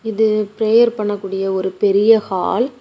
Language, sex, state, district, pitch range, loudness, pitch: Tamil, female, Tamil Nadu, Kanyakumari, 195-225 Hz, -16 LUFS, 210 Hz